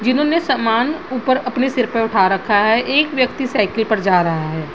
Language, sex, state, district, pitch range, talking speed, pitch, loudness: Hindi, female, Bihar, Madhepura, 205-260 Hz, 205 wpm, 235 Hz, -17 LUFS